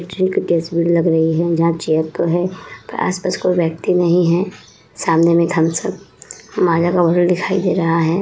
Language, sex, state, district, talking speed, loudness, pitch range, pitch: Hindi, female, Uttar Pradesh, Muzaffarnagar, 155 wpm, -16 LUFS, 165-180 Hz, 170 Hz